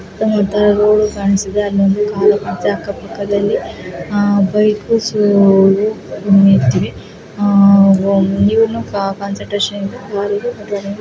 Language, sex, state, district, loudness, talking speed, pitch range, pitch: Kannada, female, Karnataka, Gulbarga, -14 LUFS, 50 wpm, 195-210 Hz, 205 Hz